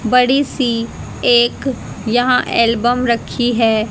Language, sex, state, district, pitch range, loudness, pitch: Hindi, female, Haryana, Jhajjar, 230-250 Hz, -15 LUFS, 240 Hz